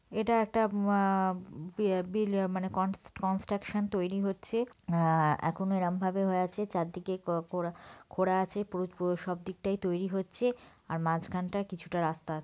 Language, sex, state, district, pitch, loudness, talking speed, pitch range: Bengali, female, West Bengal, Purulia, 185 Hz, -32 LUFS, 155 wpm, 180-200 Hz